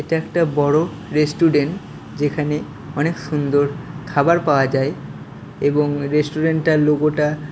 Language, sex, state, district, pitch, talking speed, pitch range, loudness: Bengali, male, West Bengal, Purulia, 150 Hz, 110 wpm, 145-160 Hz, -19 LUFS